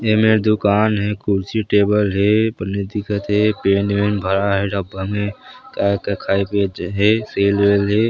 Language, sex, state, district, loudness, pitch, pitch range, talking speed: Chhattisgarhi, male, Chhattisgarh, Sarguja, -18 LUFS, 100 Hz, 100-105 Hz, 165 wpm